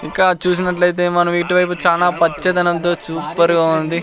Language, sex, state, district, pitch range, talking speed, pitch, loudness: Telugu, male, Andhra Pradesh, Sri Satya Sai, 170-180 Hz, 150 wpm, 175 Hz, -16 LUFS